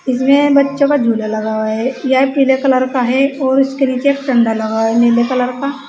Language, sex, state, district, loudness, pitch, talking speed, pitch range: Hindi, female, Uttar Pradesh, Saharanpur, -14 LUFS, 260 Hz, 235 wpm, 235-275 Hz